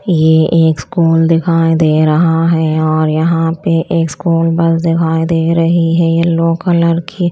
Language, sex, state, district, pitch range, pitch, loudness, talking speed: Hindi, female, Chandigarh, Chandigarh, 160-170 Hz, 165 Hz, -12 LUFS, 165 wpm